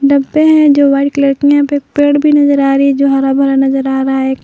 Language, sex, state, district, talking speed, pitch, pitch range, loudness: Hindi, female, Jharkhand, Palamu, 270 wpm, 280 Hz, 270-285 Hz, -10 LUFS